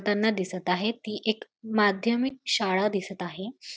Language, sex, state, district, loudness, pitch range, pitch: Marathi, female, Maharashtra, Dhule, -27 LUFS, 190-220 Hz, 210 Hz